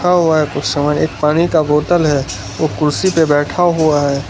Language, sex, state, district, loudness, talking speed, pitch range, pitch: Hindi, male, Gujarat, Valsad, -14 LUFS, 155 wpm, 145-170 Hz, 150 Hz